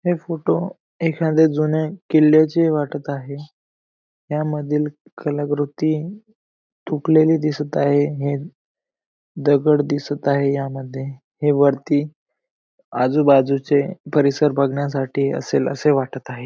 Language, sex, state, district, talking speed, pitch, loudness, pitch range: Marathi, male, Maharashtra, Aurangabad, 110 wpm, 145 Hz, -19 LUFS, 140-155 Hz